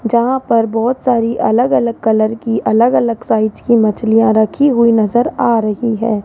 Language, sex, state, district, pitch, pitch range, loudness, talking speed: Hindi, female, Rajasthan, Jaipur, 230 Hz, 220-235 Hz, -13 LUFS, 180 wpm